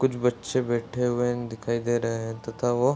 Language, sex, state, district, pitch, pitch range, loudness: Hindi, male, Bihar, Bhagalpur, 120 Hz, 115-125 Hz, -27 LUFS